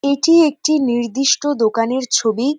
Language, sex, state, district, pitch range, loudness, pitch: Bengali, female, West Bengal, North 24 Parganas, 240-290 Hz, -16 LUFS, 275 Hz